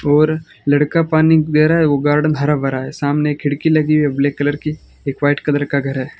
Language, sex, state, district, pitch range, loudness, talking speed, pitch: Hindi, male, Rajasthan, Bikaner, 145-155 Hz, -16 LUFS, 230 wpm, 145 Hz